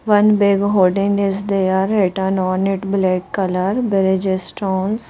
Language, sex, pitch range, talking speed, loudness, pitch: English, female, 190-200 Hz, 140 wpm, -17 LUFS, 195 Hz